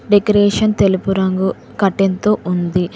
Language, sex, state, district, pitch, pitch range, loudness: Telugu, female, Telangana, Mahabubabad, 195 Hz, 190-205 Hz, -15 LUFS